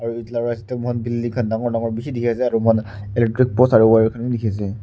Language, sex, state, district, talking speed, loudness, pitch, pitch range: Nagamese, male, Nagaland, Kohima, 225 wpm, -19 LUFS, 115 Hz, 110-120 Hz